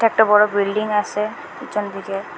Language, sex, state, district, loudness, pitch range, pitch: Bengali, female, Assam, Hailakandi, -19 LUFS, 200-220 Hz, 210 Hz